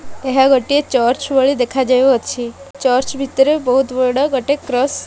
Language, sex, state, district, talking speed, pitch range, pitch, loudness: Odia, female, Odisha, Malkangiri, 140 wpm, 255-275 Hz, 265 Hz, -15 LUFS